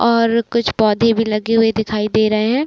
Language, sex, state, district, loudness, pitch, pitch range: Hindi, female, Bihar, Saran, -16 LUFS, 225 Hz, 215-230 Hz